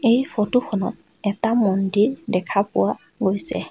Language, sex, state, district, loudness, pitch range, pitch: Assamese, female, Assam, Sonitpur, -21 LUFS, 195-235 Hz, 210 Hz